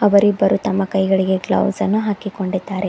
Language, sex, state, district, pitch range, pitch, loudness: Kannada, female, Karnataka, Bidar, 190-205 Hz, 195 Hz, -18 LUFS